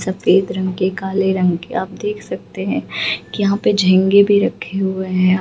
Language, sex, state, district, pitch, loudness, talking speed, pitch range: Hindi, female, Bihar, Gaya, 190 Hz, -17 LUFS, 190 wpm, 185-200 Hz